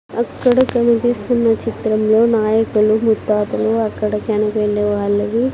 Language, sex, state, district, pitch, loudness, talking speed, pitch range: Telugu, female, Andhra Pradesh, Sri Satya Sai, 220 Hz, -16 LUFS, 95 wpm, 210-235 Hz